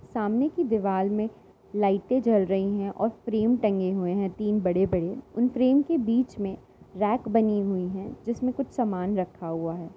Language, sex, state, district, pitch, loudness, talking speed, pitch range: Hindi, female, Uttar Pradesh, Jyotiba Phule Nagar, 210 Hz, -26 LUFS, 185 wpm, 190-235 Hz